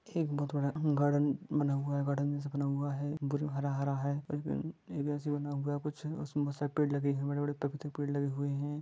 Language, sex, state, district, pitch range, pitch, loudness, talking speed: Hindi, male, Jharkhand, Sahebganj, 140-145 Hz, 145 Hz, -35 LUFS, 245 wpm